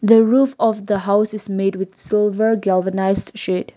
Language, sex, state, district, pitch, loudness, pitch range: English, female, Nagaland, Kohima, 205 Hz, -18 LUFS, 195-220 Hz